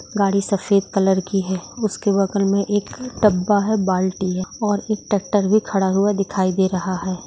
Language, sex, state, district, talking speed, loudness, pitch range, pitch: Hindi, female, Maharashtra, Dhule, 180 wpm, -20 LUFS, 190-205 Hz, 195 Hz